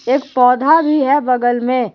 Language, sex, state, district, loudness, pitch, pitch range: Hindi, female, Jharkhand, Palamu, -14 LUFS, 255 Hz, 250-285 Hz